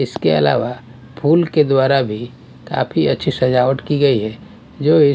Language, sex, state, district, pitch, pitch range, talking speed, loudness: Hindi, male, Bihar, West Champaran, 135 Hz, 120-145 Hz, 150 wpm, -16 LUFS